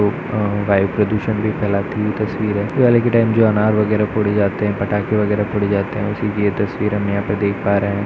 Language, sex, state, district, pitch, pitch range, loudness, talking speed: Hindi, male, Uttar Pradesh, Varanasi, 105 Hz, 100-105 Hz, -18 LUFS, 255 wpm